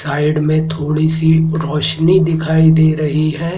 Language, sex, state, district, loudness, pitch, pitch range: Hindi, male, Madhya Pradesh, Dhar, -14 LUFS, 160 Hz, 155-160 Hz